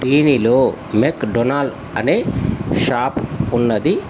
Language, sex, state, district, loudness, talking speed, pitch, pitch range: Telugu, male, Telangana, Hyderabad, -17 LUFS, 90 wpm, 125 Hz, 115-140 Hz